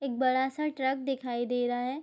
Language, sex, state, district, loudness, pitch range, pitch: Hindi, female, Bihar, Madhepura, -30 LUFS, 245-270 Hz, 260 Hz